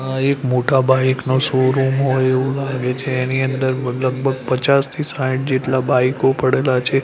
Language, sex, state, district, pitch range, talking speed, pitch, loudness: Gujarati, male, Gujarat, Gandhinagar, 130-135 Hz, 160 wpm, 130 Hz, -17 LUFS